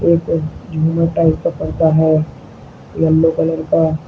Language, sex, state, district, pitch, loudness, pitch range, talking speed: Hindi, male, Uttar Pradesh, Shamli, 160 Hz, -15 LUFS, 155-165 Hz, 105 wpm